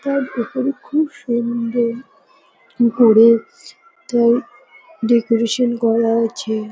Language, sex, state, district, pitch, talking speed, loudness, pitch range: Bengali, female, West Bengal, Kolkata, 235 Hz, 80 wpm, -17 LUFS, 230-270 Hz